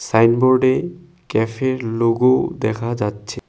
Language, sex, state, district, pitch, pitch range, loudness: Bengali, male, West Bengal, Cooch Behar, 120 Hz, 115-130 Hz, -18 LUFS